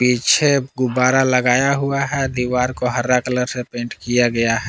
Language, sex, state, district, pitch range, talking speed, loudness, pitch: Hindi, male, Jharkhand, Palamu, 125-135 Hz, 180 wpm, -18 LUFS, 125 Hz